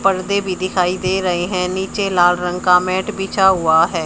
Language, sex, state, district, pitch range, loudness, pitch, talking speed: Hindi, male, Haryana, Charkhi Dadri, 180-190 Hz, -17 LUFS, 185 Hz, 205 wpm